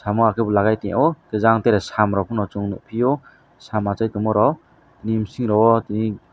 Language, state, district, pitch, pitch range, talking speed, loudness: Kokborok, Tripura, West Tripura, 110 Hz, 105-115 Hz, 200 wpm, -20 LUFS